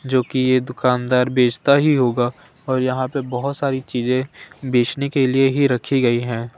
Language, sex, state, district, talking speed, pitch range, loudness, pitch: Hindi, male, Bihar, Kaimur, 185 wpm, 125-135 Hz, -19 LUFS, 130 Hz